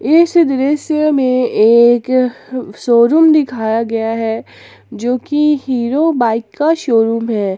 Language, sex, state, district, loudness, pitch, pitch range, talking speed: Hindi, female, Jharkhand, Ranchi, -13 LUFS, 250 Hz, 230-295 Hz, 120 wpm